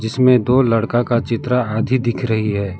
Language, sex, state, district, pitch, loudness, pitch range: Hindi, male, West Bengal, Alipurduar, 120 Hz, -17 LUFS, 110-125 Hz